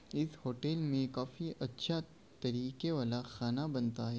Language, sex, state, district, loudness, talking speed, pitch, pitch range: Hindi, male, Bihar, Gaya, -38 LUFS, 145 wpm, 130 Hz, 120-155 Hz